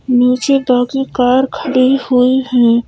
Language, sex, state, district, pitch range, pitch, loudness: Hindi, female, Madhya Pradesh, Bhopal, 245-265 Hz, 255 Hz, -13 LUFS